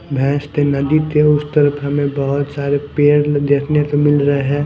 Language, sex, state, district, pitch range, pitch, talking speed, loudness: Hindi, male, Punjab, Kapurthala, 140-145 Hz, 145 Hz, 155 wpm, -15 LUFS